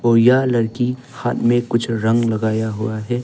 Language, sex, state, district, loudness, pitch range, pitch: Hindi, male, Arunachal Pradesh, Longding, -18 LUFS, 110-120 Hz, 115 Hz